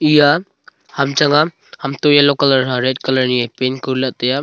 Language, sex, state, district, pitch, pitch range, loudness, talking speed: Wancho, male, Arunachal Pradesh, Longding, 135 Hz, 130-145 Hz, -15 LUFS, 270 wpm